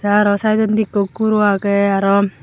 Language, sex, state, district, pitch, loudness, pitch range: Chakma, female, Tripura, Unakoti, 205 Hz, -15 LUFS, 200-215 Hz